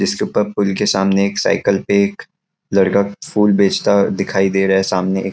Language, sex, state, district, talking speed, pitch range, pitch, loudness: Hindi, male, Chhattisgarh, Raigarh, 190 wpm, 95-100 Hz, 100 Hz, -16 LUFS